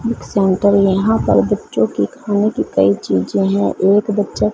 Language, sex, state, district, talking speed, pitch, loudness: Hindi, female, Punjab, Fazilka, 170 wpm, 200 Hz, -16 LUFS